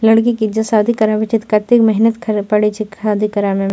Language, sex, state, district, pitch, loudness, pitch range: Maithili, female, Bihar, Purnia, 215 Hz, -15 LUFS, 210-225 Hz